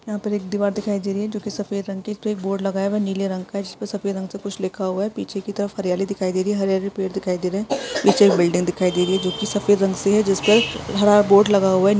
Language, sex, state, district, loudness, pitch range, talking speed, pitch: Hindi, female, Bihar, Saharsa, -20 LUFS, 190-205 Hz, 320 wpm, 200 Hz